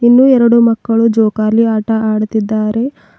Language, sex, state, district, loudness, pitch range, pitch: Kannada, female, Karnataka, Bidar, -12 LUFS, 215-235 Hz, 225 Hz